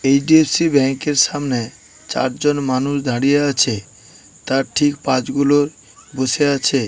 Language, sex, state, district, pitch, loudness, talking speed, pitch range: Bengali, male, West Bengal, Paschim Medinipur, 140 Hz, -17 LUFS, 120 wpm, 130-145 Hz